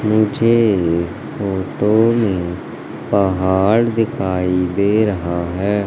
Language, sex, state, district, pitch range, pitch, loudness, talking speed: Hindi, male, Madhya Pradesh, Katni, 90-110 Hz, 100 Hz, -17 LUFS, 90 wpm